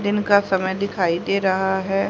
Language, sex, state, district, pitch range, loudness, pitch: Hindi, female, Haryana, Rohtak, 190-200 Hz, -20 LUFS, 195 Hz